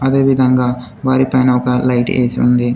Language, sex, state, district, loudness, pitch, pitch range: Telugu, male, Telangana, Komaram Bheem, -14 LUFS, 125 Hz, 125-130 Hz